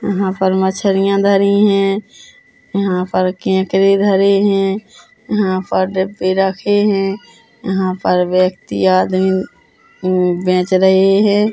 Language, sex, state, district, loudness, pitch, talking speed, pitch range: Hindi, female, Chhattisgarh, Korba, -15 LUFS, 195 Hz, 120 wpm, 185-200 Hz